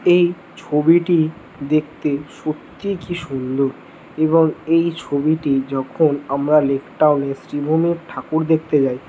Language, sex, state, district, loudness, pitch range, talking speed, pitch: Bengali, male, West Bengal, North 24 Parganas, -19 LUFS, 140-165 Hz, 105 wpm, 155 Hz